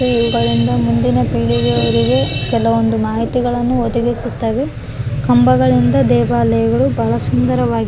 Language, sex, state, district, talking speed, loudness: Kannada, female, Karnataka, Raichur, 90 wpm, -15 LUFS